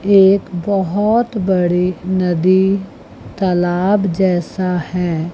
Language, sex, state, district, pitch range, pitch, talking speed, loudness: Hindi, female, Chandigarh, Chandigarh, 180-195 Hz, 185 Hz, 80 wpm, -16 LUFS